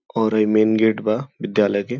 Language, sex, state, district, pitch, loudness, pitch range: Bhojpuri, male, Uttar Pradesh, Gorakhpur, 110 Hz, -19 LUFS, 110-120 Hz